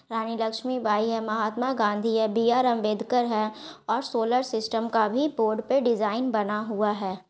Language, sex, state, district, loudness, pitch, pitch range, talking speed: Hindi, female, Bihar, Gaya, -26 LUFS, 225 Hz, 215-240 Hz, 175 wpm